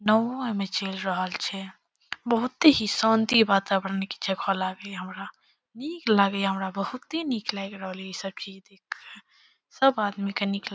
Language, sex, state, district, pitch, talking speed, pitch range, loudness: Maithili, female, Bihar, Saharsa, 200 Hz, 185 wpm, 195-225 Hz, -26 LUFS